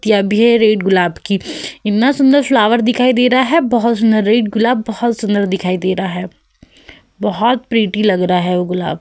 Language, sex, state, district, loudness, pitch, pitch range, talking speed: Hindi, female, Uttar Pradesh, Hamirpur, -14 LUFS, 215 Hz, 190-240 Hz, 185 wpm